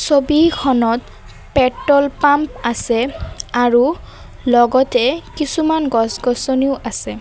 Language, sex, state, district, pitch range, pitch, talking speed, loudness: Assamese, female, Assam, Kamrup Metropolitan, 240-290 Hz, 265 Hz, 85 wpm, -16 LUFS